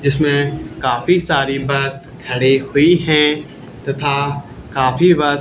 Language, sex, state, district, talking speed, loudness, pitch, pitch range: Hindi, male, Haryana, Charkhi Dadri, 120 wpm, -16 LUFS, 140 Hz, 135-150 Hz